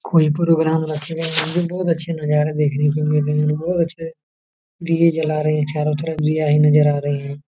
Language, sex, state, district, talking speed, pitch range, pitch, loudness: Hindi, male, Jharkhand, Jamtara, 215 wpm, 150-165 Hz, 155 Hz, -18 LUFS